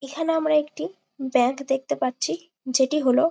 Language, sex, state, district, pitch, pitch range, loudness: Bengali, female, West Bengal, Jalpaiguri, 275 Hz, 265-315 Hz, -24 LUFS